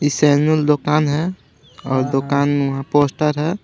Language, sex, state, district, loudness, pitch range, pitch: Hindi, female, Jharkhand, Garhwa, -17 LUFS, 140-150 Hz, 145 Hz